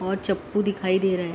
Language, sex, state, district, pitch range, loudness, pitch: Hindi, female, Uttar Pradesh, Deoria, 185-195 Hz, -24 LUFS, 190 Hz